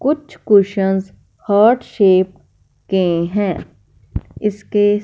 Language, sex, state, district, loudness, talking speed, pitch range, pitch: Hindi, female, Punjab, Fazilka, -16 LUFS, 85 wpm, 190-210 Hz, 200 Hz